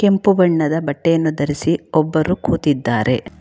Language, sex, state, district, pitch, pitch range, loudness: Kannada, female, Karnataka, Bangalore, 160 Hz, 145-165 Hz, -17 LUFS